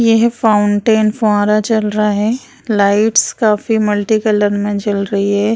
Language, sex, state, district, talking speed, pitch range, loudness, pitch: Hindi, female, Bihar, Madhepura, 160 wpm, 205-220 Hz, -14 LUFS, 215 Hz